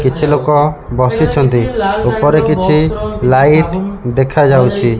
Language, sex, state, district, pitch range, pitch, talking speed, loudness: Odia, male, Odisha, Malkangiri, 125-150 Hz, 145 Hz, 85 wpm, -12 LUFS